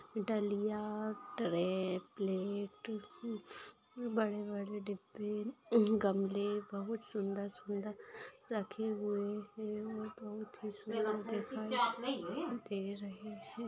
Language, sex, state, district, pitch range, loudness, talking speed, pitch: Hindi, female, Maharashtra, Pune, 205-220 Hz, -39 LUFS, 95 wpm, 210 Hz